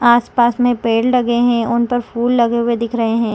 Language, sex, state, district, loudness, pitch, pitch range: Hindi, female, Chhattisgarh, Raigarh, -15 LUFS, 235 Hz, 235-240 Hz